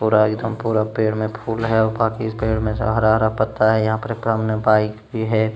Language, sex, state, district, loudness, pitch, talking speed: Hindi, male, Uttar Pradesh, Jalaun, -19 LUFS, 110 Hz, 170 wpm